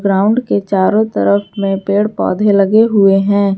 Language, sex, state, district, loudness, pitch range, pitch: Hindi, female, Jharkhand, Garhwa, -13 LUFS, 195-210 Hz, 200 Hz